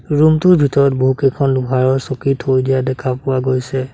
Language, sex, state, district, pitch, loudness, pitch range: Assamese, male, Assam, Sonitpur, 130 Hz, -15 LUFS, 130-140 Hz